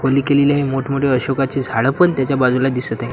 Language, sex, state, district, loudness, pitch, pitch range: Marathi, male, Maharashtra, Washim, -17 LUFS, 135 Hz, 130-140 Hz